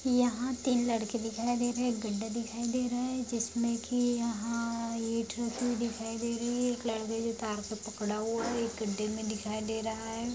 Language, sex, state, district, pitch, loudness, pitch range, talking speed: Hindi, female, Bihar, Bhagalpur, 230 Hz, -33 LUFS, 225-240 Hz, 190 wpm